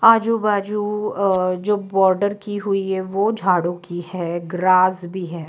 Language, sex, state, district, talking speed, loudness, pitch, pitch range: Hindi, female, Bihar, Katihar, 165 wpm, -20 LUFS, 190 Hz, 180-205 Hz